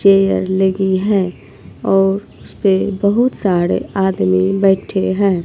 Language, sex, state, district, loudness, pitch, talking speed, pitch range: Hindi, female, Himachal Pradesh, Shimla, -15 LUFS, 195 Hz, 110 wpm, 185-200 Hz